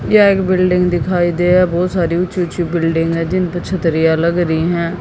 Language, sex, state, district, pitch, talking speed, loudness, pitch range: Hindi, female, Haryana, Jhajjar, 175 Hz, 205 wpm, -15 LUFS, 170-180 Hz